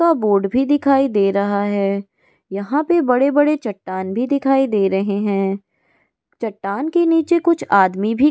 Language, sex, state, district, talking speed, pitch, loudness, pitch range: Hindi, female, Goa, North and South Goa, 165 wpm, 220 Hz, -17 LUFS, 200-290 Hz